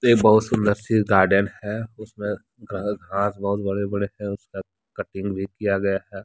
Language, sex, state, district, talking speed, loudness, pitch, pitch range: Hindi, male, Jharkhand, Deoghar, 175 wpm, -23 LUFS, 100 Hz, 100-105 Hz